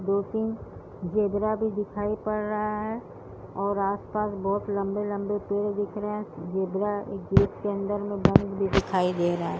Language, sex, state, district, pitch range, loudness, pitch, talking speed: Hindi, female, Uttar Pradesh, Budaun, 195-210 Hz, -27 LUFS, 205 Hz, 175 wpm